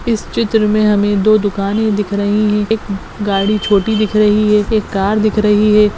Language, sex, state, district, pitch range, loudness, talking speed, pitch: Hindi, female, Maharashtra, Nagpur, 205-215 Hz, -14 LUFS, 200 wpm, 210 Hz